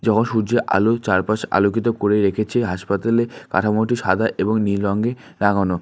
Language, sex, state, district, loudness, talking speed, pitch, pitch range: Bengali, male, West Bengal, Alipurduar, -19 LUFS, 135 wpm, 105 Hz, 100-115 Hz